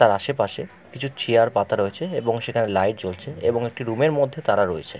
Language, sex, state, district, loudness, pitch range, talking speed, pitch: Bengali, male, West Bengal, Kolkata, -23 LUFS, 115-140 Hz, 180 wpm, 115 Hz